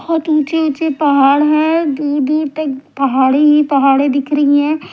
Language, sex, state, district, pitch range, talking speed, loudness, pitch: Hindi, female, Himachal Pradesh, Shimla, 280-310 Hz, 160 wpm, -13 LUFS, 295 Hz